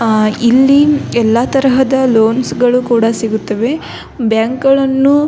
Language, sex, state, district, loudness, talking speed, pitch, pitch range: Kannada, female, Karnataka, Belgaum, -12 LUFS, 125 wpm, 245 Hz, 225-270 Hz